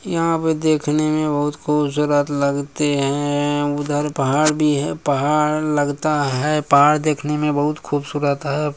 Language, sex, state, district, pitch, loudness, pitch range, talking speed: Maithili, male, Bihar, Samastipur, 150 Hz, -19 LUFS, 145-150 Hz, 145 wpm